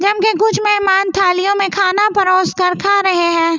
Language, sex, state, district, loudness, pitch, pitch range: Hindi, female, Delhi, New Delhi, -13 LUFS, 390 Hz, 370-400 Hz